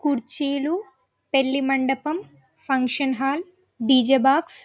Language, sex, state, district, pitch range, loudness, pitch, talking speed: Telugu, female, Telangana, Karimnagar, 265-300 Hz, -21 LUFS, 270 Hz, 105 wpm